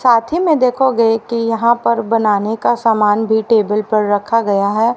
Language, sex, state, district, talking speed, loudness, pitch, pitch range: Hindi, female, Haryana, Rohtak, 195 wpm, -14 LUFS, 225 Hz, 215-235 Hz